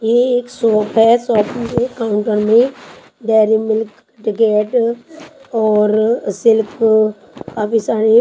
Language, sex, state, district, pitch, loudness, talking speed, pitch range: Hindi, female, Haryana, Charkhi Dadri, 225 Hz, -15 LUFS, 115 wpm, 215-235 Hz